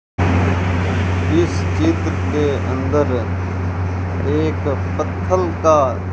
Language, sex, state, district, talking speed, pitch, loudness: Hindi, male, Rajasthan, Bikaner, 80 wpm, 90 Hz, -18 LUFS